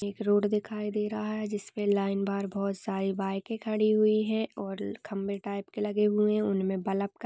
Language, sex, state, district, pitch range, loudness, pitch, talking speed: Hindi, female, Maharashtra, Nagpur, 195-215 Hz, -30 LUFS, 205 Hz, 200 wpm